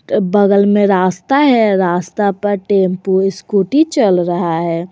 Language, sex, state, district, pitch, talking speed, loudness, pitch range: Hindi, female, Jharkhand, Garhwa, 195 Hz, 135 wpm, -13 LUFS, 180-205 Hz